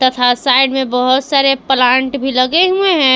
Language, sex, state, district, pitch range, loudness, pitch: Hindi, female, Jharkhand, Palamu, 255-275 Hz, -12 LUFS, 265 Hz